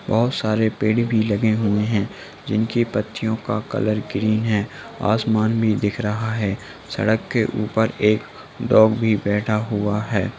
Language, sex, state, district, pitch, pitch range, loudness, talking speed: Hindi, male, Bihar, Lakhisarai, 110 Hz, 105-110 Hz, -21 LUFS, 160 wpm